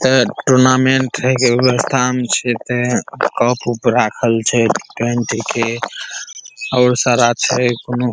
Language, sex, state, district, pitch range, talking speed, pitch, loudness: Maithili, male, Bihar, Saharsa, 120-125 Hz, 135 wpm, 125 Hz, -15 LUFS